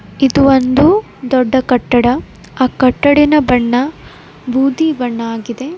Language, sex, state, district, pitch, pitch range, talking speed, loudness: Kannada, female, Karnataka, Koppal, 260 Hz, 245-280 Hz, 105 wpm, -13 LUFS